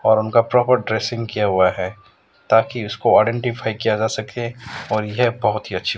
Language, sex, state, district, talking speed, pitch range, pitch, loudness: Hindi, male, Rajasthan, Jaisalmer, 180 wpm, 105-120 Hz, 110 Hz, -19 LUFS